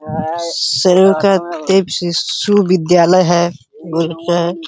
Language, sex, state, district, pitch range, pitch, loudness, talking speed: Hindi, male, Uttar Pradesh, Hamirpur, 165-185 Hz, 175 Hz, -14 LUFS, 40 wpm